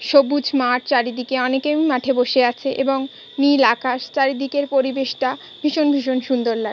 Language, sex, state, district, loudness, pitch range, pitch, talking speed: Bengali, female, West Bengal, Kolkata, -19 LUFS, 250-280 Hz, 265 Hz, 160 wpm